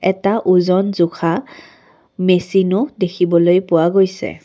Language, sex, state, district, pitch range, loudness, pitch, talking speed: Assamese, female, Assam, Kamrup Metropolitan, 175-195 Hz, -15 LUFS, 185 Hz, 95 wpm